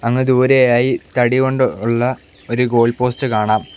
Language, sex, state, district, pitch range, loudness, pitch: Malayalam, male, Kerala, Kollam, 115-130 Hz, -15 LUFS, 125 Hz